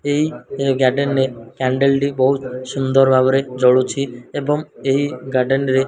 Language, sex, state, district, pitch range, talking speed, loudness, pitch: Odia, male, Odisha, Malkangiri, 130-140 Hz, 155 wpm, -18 LUFS, 135 Hz